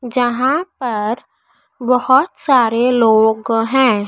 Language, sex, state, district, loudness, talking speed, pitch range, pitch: Hindi, female, Madhya Pradesh, Dhar, -15 LUFS, 90 wpm, 225-260 Hz, 245 Hz